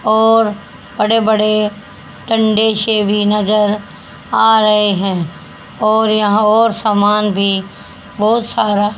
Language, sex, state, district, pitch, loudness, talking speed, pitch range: Hindi, female, Haryana, Charkhi Dadri, 210 Hz, -13 LUFS, 115 wpm, 205-220 Hz